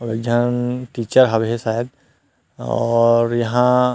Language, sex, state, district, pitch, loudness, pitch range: Chhattisgarhi, male, Chhattisgarh, Rajnandgaon, 120 Hz, -18 LUFS, 115-125 Hz